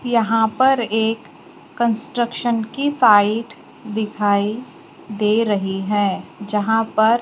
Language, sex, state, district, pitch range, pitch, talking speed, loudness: Hindi, female, Maharashtra, Gondia, 210-235 Hz, 220 Hz, 110 wpm, -19 LUFS